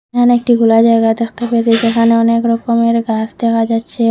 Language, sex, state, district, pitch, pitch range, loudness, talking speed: Bengali, female, Assam, Hailakandi, 230 Hz, 230-235 Hz, -13 LUFS, 175 wpm